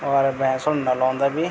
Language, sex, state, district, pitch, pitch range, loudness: Garhwali, male, Uttarakhand, Tehri Garhwal, 135 Hz, 130-140 Hz, -21 LUFS